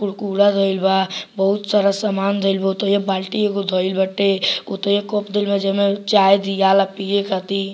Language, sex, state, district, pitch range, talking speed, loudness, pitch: Bhojpuri, male, Bihar, Muzaffarpur, 195-200 Hz, 180 wpm, -18 LUFS, 195 Hz